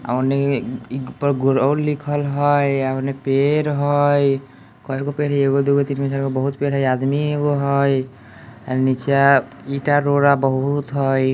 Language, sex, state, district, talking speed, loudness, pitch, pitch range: Bajjika, male, Bihar, Vaishali, 150 wpm, -19 LUFS, 140 Hz, 135-145 Hz